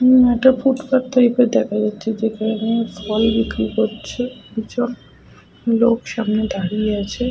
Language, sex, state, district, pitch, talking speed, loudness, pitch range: Bengali, female, West Bengal, Malda, 225 Hz, 130 wpm, -18 LUFS, 215-245 Hz